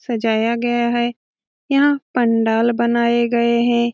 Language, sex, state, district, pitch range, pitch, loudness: Hindi, female, Bihar, Jamui, 235-240 Hz, 235 Hz, -17 LUFS